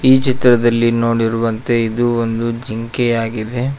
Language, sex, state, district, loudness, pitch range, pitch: Kannada, male, Karnataka, Koppal, -16 LUFS, 115-120 Hz, 115 Hz